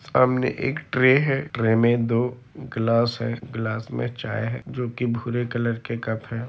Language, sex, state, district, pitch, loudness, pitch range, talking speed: Hindi, male, Bihar, Madhepura, 120 Hz, -24 LUFS, 115-125 Hz, 185 wpm